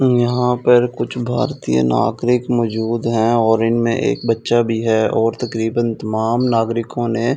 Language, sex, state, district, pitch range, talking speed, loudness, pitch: Hindi, male, Delhi, New Delhi, 115-120 Hz, 145 wpm, -17 LUFS, 115 Hz